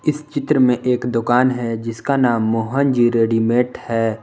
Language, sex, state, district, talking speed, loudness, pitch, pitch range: Hindi, male, Jharkhand, Palamu, 170 wpm, -18 LUFS, 120 Hz, 115-130 Hz